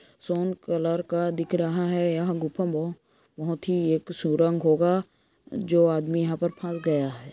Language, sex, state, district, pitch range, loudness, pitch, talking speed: Hindi, male, Chhattisgarh, Kabirdham, 160-175 Hz, -26 LUFS, 170 Hz, 165 wpm